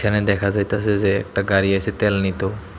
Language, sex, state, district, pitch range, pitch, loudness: Bengali, male, Tripura, West Tripura, 95-105 Hz, 100 Hz, -20 LUFS